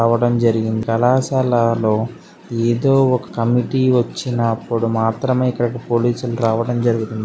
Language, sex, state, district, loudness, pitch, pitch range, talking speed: Telugu, male, Andhra Pradesh, Srikakulam, -18 LUFS, 120 Hz, 115-125 Hz, 100 wpm